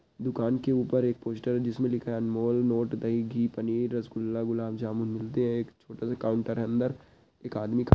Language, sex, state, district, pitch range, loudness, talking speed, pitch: Hindi, male, Uttarakhand, Uttarkashi, 115-120 Hz, -30 LUFS, 220 wpm, 115 Hz